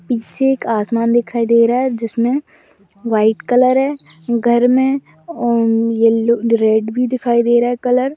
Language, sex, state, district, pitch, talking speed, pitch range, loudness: Magahi, female, Bihar, Gaya, 235 Hz, 170 wpm, 230-250 Hz, -15 LUFS